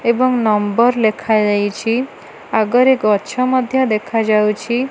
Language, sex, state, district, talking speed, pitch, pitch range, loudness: Odia, female, Odisha, Malkangiri, 85 wpm, 225 Hz, 215-250 Hz, -15 LUFS